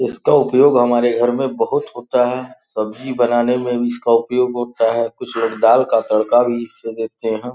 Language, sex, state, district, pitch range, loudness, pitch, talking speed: Hindi, male, Uttar Pradesh, Gorakhpur, 115-125 Hz, -17 LUFS, 120 Hz, 205 wpm